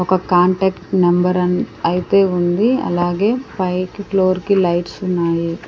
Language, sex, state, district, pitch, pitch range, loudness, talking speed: Telugu, female, Andhra Pradesh, Sri Satya Sai, 180 Hz, 175-190 Hz, -17 LUFS, 125 wpm